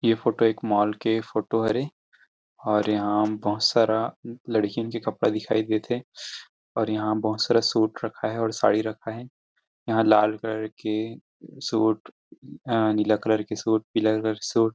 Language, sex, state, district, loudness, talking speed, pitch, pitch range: Chhattisgarhi, male, Chhattisgarh, Rajnandgaon, -25 LUFS, 170 wpm, 110 Hz, 110-115 Hz